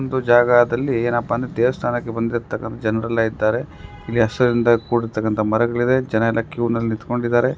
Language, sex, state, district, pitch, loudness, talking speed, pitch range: Kannada, male, Karnataka, Raichur, 120 Hz, -19 LUFS, 135 wpm, 115-120 Hz